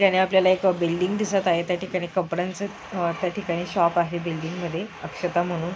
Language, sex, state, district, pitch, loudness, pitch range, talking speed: Marathi, female, Maharashtra, Chandrapur, 180 Hz, -24 LUFS, 170-190 Hz, 165 wpm